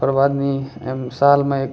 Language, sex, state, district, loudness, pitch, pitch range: Angika, male, Bihar, Bhagalpur, -18 LUFS, 135 Hz, 135-140 Hz